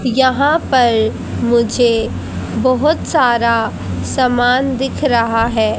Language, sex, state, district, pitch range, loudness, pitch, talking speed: Hindi, female, Haryana, Charkhi Dadri, 230-260 Hz, -15 LUFS, 245 Hz, 95 wpm